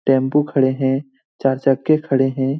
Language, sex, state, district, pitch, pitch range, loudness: Hindi, male, Bihar, Lakhisarai, 135 Hz, 130-140 Hz, -18 LUFS